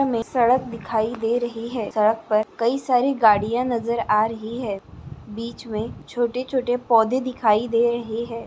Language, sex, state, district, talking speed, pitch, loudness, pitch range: Hindi, female, Andhra Pradesh, Chittoor, 165 wpm, 230 Hz, -22 LUFS, 220-245 Hz